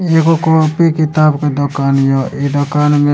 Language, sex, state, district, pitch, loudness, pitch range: Maithili, male, Bihar, Supaul, 150 Hz, -13 LUFS, 140-160 Hz